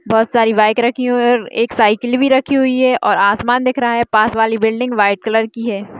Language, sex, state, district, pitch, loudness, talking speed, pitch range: Hindi, female, Bihar, Madhepura, 230 Hz, -14 LUFS, 240 wpm, 220-245 Hz